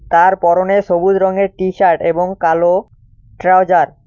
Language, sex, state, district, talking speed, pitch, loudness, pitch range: Bengali, male, West Bengal, Cooch Behar, 135 wpm, 180 Hz, -13 LUFS, 170-190 Hz